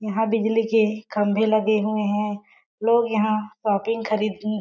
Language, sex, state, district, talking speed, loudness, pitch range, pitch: Hindi, female, Chhattisgarh, Balrampur, 155 wpm, -22 LUFS, 210-220 Hz, 215 Hz